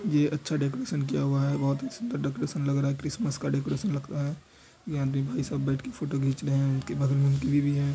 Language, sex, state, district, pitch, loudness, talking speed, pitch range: Hindi, male, Bihar, Madhepura, 140 Hz, -28 LUFS, 255 wpm, 135-145 Hz